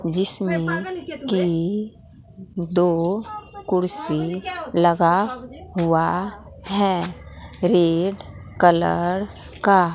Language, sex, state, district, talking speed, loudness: Hindi, male, Bihar, Katihar, 60 wpm, -21 LUFS